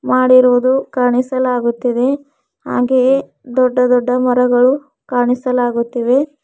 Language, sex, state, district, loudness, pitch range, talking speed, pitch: Kannada, female, Karnataka, Bidar, -14 LUFS, 245-260 Hz, 65 wpm, 250 Hz